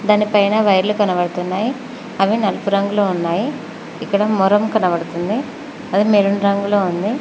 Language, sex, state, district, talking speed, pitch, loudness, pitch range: Telugu, female, Telangana, Mahabubabad, 115 wpm, 205 Hz, -17 LUFS, 195-220 Hz